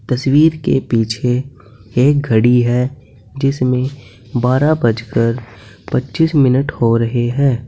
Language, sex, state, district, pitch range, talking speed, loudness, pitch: Hindi, male, Uttar Pradesh, Saharanpur, 115-135 Hz, 110 wpm, -15 LUFS, 125 Hz